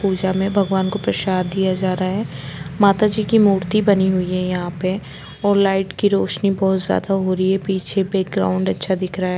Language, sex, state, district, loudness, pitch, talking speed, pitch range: Hindi, female, Jharkhand, Jamtara, -19 LUFS, 190 Hz, 210 wpm, 185-200 Hz